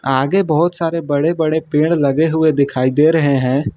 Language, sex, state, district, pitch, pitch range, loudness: Hindi, male, Uttar Pradesh, Lucknow, 155 Hz, 140-160 Hz, -15 LUFS